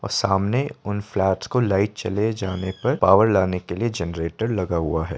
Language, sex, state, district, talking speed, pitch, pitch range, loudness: Hindi, male, Uttar Pradesh, Jyotiba Phule Nagar, 195 wpm, 100 Hz, 90-110 Hz, -22 LUFS